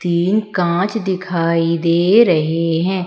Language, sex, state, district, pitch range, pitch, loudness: Hindi, female, Madhya Pradesh, Umaria, 165-190 Hz, 175 Hz, -16 LUFS